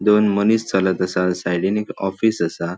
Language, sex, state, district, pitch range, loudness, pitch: Konkani, male, Goa, North and South Goa, 90-105 Hz, -19 LUFS, 95 Hz